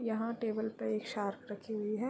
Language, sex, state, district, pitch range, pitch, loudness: Hindi, female, Chhattisgarh, Korba, 210-230 Hz, 220 Hz, -37 LUFS